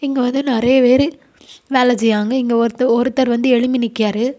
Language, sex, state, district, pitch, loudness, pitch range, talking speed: Tamil, female, Tamil Nadu, Kanyakumari, 250 Hz, -15 LUFS, 235-260 Hz, 165 wpm